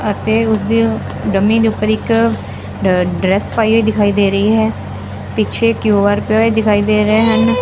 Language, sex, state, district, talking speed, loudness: Punjabi, female, Punjab, Fazilka, 180 wpm, -14 LUFS